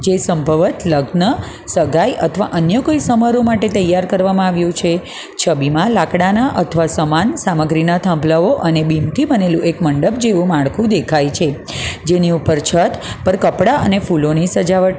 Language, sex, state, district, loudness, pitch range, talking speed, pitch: Gujarati, female, Gujarat, Valsad, -14 LUFS, 160-190 Hz, 150 wpm, 175 Hz